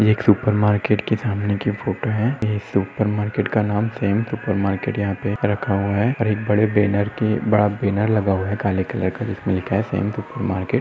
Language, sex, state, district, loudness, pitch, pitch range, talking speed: Hindi, male, Maharashtra, Solapur, -21 LUFS, 105 Hz, 100-110 Hz, 225 wpm